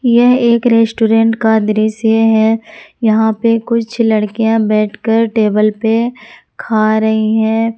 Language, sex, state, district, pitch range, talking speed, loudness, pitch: Hindi, female, Jharkhand, Palamu, 220-230 Hz, 130 wpm, -13 LUFS, 225 Hz